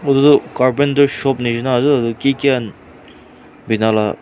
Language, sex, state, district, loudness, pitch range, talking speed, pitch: Nagamese, male, Nagaland, Kohima, -15 LUFS, 110-140 Hz, 170 wpm, 130 Hz